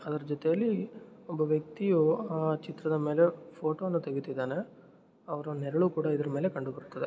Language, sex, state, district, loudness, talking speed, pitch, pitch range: Kannada, male, Karnataka, Shimoga, -31 LUFS, 110 wpm, 160 Hz, 150-185 Hz